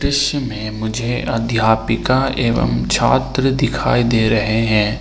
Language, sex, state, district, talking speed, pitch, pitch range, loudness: Hindi, male, Jharkhand, Ranchi, 120 wpm, 115 Hz, 110-130 Hz, -17 LUFS